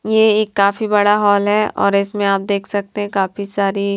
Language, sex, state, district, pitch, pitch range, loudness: Hindi, female, Haryana, Rohtak, 205 Hz, 200-210 Hz, -16 LUFS